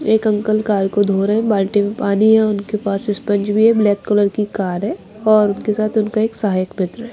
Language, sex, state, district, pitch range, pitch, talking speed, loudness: Hindi, female, Bihar, Patna, 200-215 Hz, 210 Hz, 235 wpm, -17 LUFS